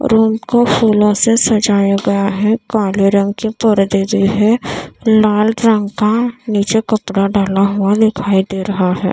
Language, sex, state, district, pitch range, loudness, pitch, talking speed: Hindi, female, Maharashtra, Mumbai Suburban, 200-220 Hz, -13 LUFS, 210 Hz, 160 wpm